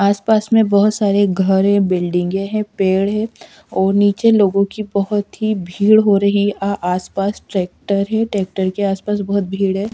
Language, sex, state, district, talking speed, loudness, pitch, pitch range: Hindi, female, Odisha, Sambalpur, 195 wpm, -16 LUFS, 200 Hz, 195-210 Hz